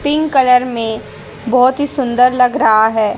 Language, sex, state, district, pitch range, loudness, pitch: Hindi, female, Haryana, Jhajjar, 225-265 Hz, -13 LUFS, 250 Hz